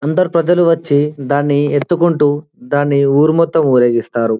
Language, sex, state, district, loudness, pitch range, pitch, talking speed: Telugu, male, Telangana, Karimnagar, -14 LUFS, 140-165 Hz, 145 Hz, 120 wpm